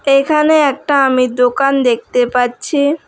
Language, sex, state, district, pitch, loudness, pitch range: Bengali, female, West Bengal, Alipurduar, 275 Hz, -13 LUFS, 250-285 Hz